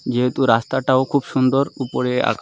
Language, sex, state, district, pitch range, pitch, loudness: Bengali, male, West Bengal, North 24 Parganas, 125-135 Hz, 130 Hz, -19 LUFS